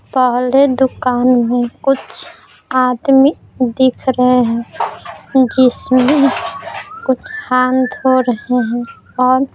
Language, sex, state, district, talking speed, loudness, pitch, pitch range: Hindi, female, Bihar, Patna, 100 wpm, -14 LUFS, 255 Hz, 250-265 Hz